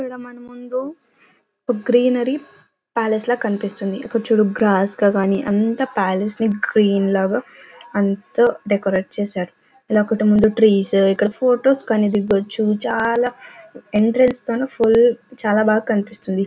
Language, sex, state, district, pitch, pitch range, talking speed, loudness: Telugu, female, Karnataka, Bellary, 220 Hz, 205-245 Hz, 105 wpm, -18 LUFS